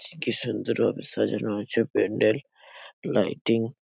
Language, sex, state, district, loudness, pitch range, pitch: Bengali, male, West Bengal, Paschim Medinipur, -26 LUFS, 105-120 Hz, 115 Hz